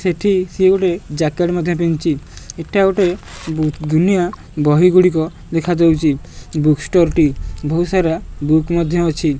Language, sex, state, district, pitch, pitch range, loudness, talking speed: Odia, male, Odisha, Nuapada, 170 Hz, 155-180 Hz, -16 LUFS, 135 wpm